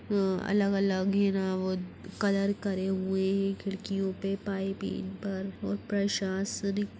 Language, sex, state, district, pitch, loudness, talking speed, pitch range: Hindi, female, Bihar, Jahanabad, 195 Hz, -30 LUFS, 130 wpm, 190-200 Hz